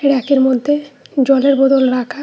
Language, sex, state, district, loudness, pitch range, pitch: Bengali, female, West Bengal, Cooch Behar, -14 LUFS, 265-280 Hz, 275 Hz